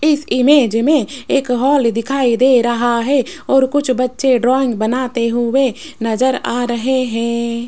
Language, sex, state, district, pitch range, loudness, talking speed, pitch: Hindi, female, Rajasthan, Jaipur, 235-270 Hz, -15 LUFS, 150 wpm, 255 Hz